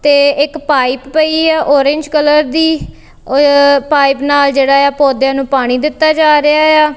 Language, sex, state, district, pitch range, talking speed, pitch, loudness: Punjabi, female, Punjab, Kapurthala, 275-305 Hz, 180 wpm, 285 Hz, -10 LUFS